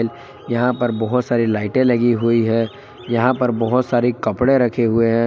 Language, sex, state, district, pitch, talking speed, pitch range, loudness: Hindi, male, Jharkhand, Palamu, 120 Hz, 180 wpm, 115-125 Hz, -18 LUFS